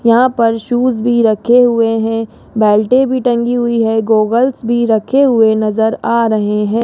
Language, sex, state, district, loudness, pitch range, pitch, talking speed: Hindi, female, Rajasthan, Jaipur, -13 LUFS, 220-240 Hz, 230 Hz, 175 wpm